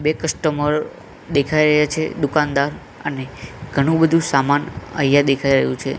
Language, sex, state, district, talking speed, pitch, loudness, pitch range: Gujarati, male, Gujarat, Gandhinagar, 140 wpm, 145 Hz, -18 LUFS, 140-155 Hz